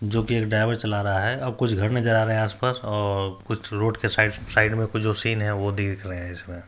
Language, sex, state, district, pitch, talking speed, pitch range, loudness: Hindi, male, Bihar, Supaul, 110 Hz, 285 wpm, 100-115 Hz, -24 LUFS